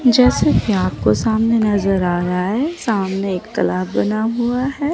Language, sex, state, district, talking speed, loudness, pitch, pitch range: Hindi, female, Chandigarh, Chandigarh, 170 wpm, -17 LUFS, 205 Hz, 180-240 Hz